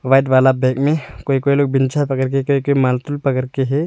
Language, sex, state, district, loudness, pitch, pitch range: Hindi, male, Arunachal Pradesh, Longding, -17 LUFS, 135 Hz, 130-140 Hz